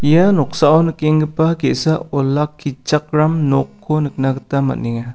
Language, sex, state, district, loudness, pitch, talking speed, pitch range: Garo, male, Meghalaya, South Garo Hills, -16 LUFS, 150 Hz, 105 wpm, 135-160 Hz